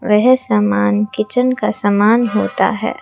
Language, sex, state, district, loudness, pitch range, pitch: Hindi, female, Rajasthan, Jaipur, -15 LUFS, 205-245 Hz, 210 Hz